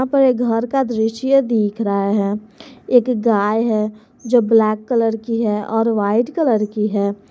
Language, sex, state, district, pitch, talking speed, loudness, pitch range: Hindi, female, Jharkhand, Garhwa, 225 Hz, 170 wpm, -17 LUFS, 210-245 Hz